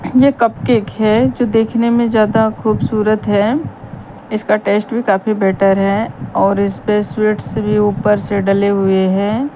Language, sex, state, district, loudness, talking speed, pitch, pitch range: Hindi, female, Punjab, Pathankot, -14 LUFS, 165 wpm, 215 Hz, 200-225 Hz